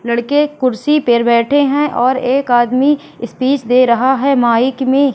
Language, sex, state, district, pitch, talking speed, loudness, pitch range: Hindi, female, Madhya Pradesh, Katni, 260 Hz, 165 wpm, -13 LUFS, 240-280 Hz